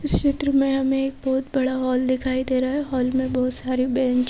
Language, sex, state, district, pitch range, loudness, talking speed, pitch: Hindi, female, Madhya Pradesh, Bhopal, 255-270 Hz, -21 LUFS, 235 wpm, 260 Hz